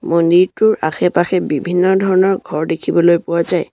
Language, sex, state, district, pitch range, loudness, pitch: Assamese, male, Assam, Sonitpur, 170-185 Hz, -15 LUFS, 175 Hz